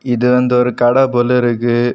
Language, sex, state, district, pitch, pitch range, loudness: Tamil, male, Tamil Nadu, Kanyakumari, 125 Hz, 120-125 Hz, -13 LUFS